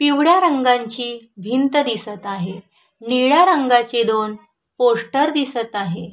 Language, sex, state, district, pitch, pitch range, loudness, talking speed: Marathi, female, Maharashtra, Sindhudurg, 240 Hz, 215-280 Hz, -18 LUFS, 110 wpm